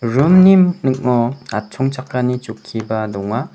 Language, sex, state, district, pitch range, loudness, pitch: Garo, male, Meghalaya, West Garo Hills, 110-135 Hz, -16 LUFS, 125 Hz